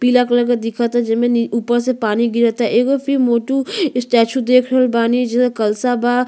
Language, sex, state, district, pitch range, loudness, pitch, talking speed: Bhojpuri, female, Uttar Pradesh, Gorakhpur, 235-250 Hz, -16 LUFS, 240 Hz, 190 wpm